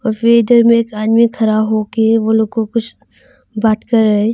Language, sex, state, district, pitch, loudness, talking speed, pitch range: Hindi, female, Arunachal Pradesh, Longding, 225 Hz, -13 LUFS, 180 wpm, 220-230 Hz